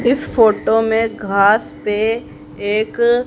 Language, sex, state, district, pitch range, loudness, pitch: Hindi, female, Haryana, Rohtak, 210-235 Hz, -16 LUFS, 225 Hz